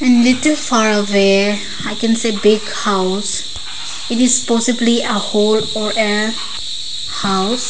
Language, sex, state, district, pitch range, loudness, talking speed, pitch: English, female, Arunachal Pradesh, Lower Dibang Valley, 205-235 Hz, -15 LUFS, 125 wpm, 215 Hz